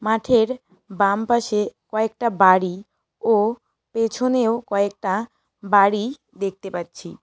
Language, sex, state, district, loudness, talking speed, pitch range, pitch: Bengali, female, West Bengal, Cooch Behar, -21 LUFS, 90 wpm, 195-230 Hz, 210 Hz